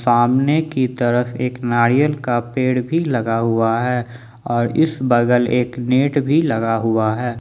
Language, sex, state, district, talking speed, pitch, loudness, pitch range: Hindi, male, Jharkhand, Ranchi, 160 wpm, 125 Hz, -18 LUFS, 120-130 Hz